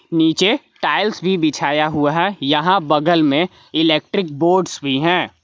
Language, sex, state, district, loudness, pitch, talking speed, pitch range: Hindi, male, Jharkhand, Palamu, -17 LUFS, 160 Hz, 145 wpm, 150-180 Hz